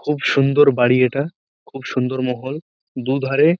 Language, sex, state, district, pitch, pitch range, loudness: Bengali, male, West Bengal, Purulia, 135 Hz, 130-145 Hz, -18 LUFS